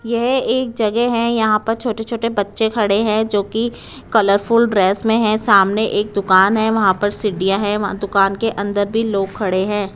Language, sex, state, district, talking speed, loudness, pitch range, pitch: Hindi, female, Punjab, Kapurthala, 200 wpm, -17 LUFS, 200-225 Hz, 215 Hz